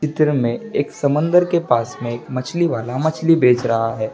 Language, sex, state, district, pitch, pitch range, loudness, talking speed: Hindi, male, Bihar, Gaya, 135 Hz, 120-160 Hz, -18 LUFS, 200 wpm